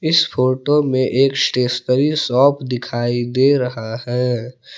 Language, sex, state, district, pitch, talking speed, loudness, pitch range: Hindi, male, Jharkhand, Palamu, 125 Hz, 125 wpm, -17 LUFS, 125-140 Hz